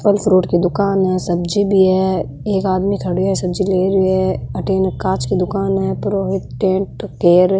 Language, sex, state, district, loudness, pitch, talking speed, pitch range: Marwari, female, Rajasthan, Nagaur, -16 LUFS, 190 Hz, 195 wpm, 185-195 Hz